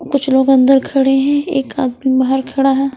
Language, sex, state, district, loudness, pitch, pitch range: Hindi, female, Himachal Pradesh, Shimla, -14 LUFS, 270 Hz, 265-275 Hz